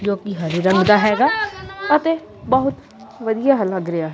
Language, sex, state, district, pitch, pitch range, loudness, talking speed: Punjabi, male, Punjab, Kapurthala, 210 Hz, 190-280 Hz, -18 LUFS, 145 wpm